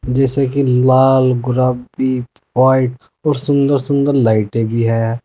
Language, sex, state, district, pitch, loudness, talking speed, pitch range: Hindi, male, Uttar Pradesh, Saharanpur, 130 Hz, -15 LUFS, 125 wpm, 120-135 Hz